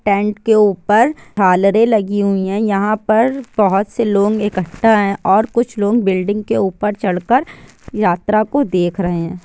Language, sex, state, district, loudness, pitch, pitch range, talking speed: Hindi, female, Bihar, Sitamarhi, -15 LUFS, 210 Hz, 195-220 Hz, 165 wpm